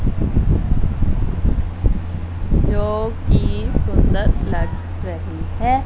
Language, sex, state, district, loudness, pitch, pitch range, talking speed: Hindi, female, Punjab, Fazilka, -21 LUFS, 90 Hz, 85-100 Hz, 60 wpm